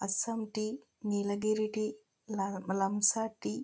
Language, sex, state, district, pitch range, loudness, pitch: Telugu, female, Telangana, Karimnagar, 200-220 Hz, -33 LUFS, 215 Hz